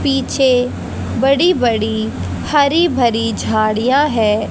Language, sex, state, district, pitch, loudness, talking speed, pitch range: Hindi, female, Haryana, Charkhi Dadri, 250 Hz, -15 LUFS, 95 wpm, 220-280 Hz